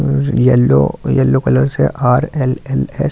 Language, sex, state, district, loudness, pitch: Hindi, male, Delhi, New Delhi, -14 LUFS, 125 Hz